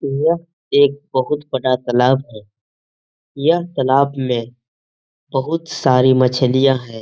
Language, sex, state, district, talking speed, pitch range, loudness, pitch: Hindi, male, Bihar, Jamui, 110 wpm, 125-140 Hz, -17 LUFS, 130 Hz